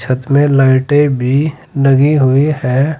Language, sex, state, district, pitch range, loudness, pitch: Hindi, male, Uttar Pradesh, Saharanpur, 130-145 Hz, -12 LUFS, 140 Hz